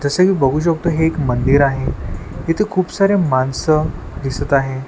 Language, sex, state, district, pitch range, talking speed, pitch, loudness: Marathi, male, Maharashtra, Washim, 130-165 Hz, 170 wpm, 140 Hz, -17 LUFS